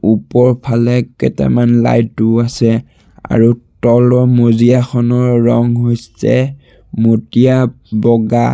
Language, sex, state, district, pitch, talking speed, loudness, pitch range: Assamese, male, Assam, Sonitpur, 120 Hz, 85 wpm, -12 LUFS, 115-125 Hz